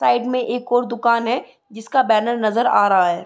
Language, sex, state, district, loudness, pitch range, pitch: Hindi, female, Uttar Pradesh, Gorakhpur, -18 LUFS, 220-245 Hz, 235 Hz